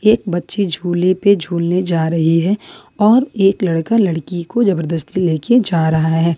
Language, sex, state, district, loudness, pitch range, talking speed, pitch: Hindi, female, Jharkhand, Ranchi, -15 LUFS, 165-200 Hz, 180 wpm, 180 Hz